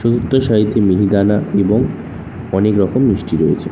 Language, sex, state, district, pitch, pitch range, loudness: Bengali, male, West Bengal, North 24 Parganas, 105 Hz, 100-120 Hz, -15 LUFS